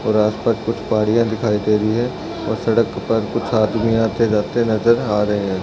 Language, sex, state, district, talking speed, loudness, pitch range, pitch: Hindi, male, Uttarakhand, Uttarkashi, 215 wpm, -18 LUFS, 105-115 Hz, 110 Hz